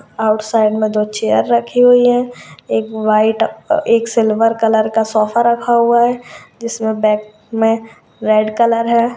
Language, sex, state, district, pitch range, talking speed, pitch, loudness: Kumaoni, female, Uttarakhand, Tehri Garhwal, 215-235 Hz, 155 wpm, 225 Hz, -14 LUFS